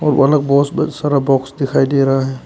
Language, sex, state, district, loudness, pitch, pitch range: Hindi, male, Arunachal Pradesh, Papum Pare, -15 LUFS, 140 Hz, 135-145 Hz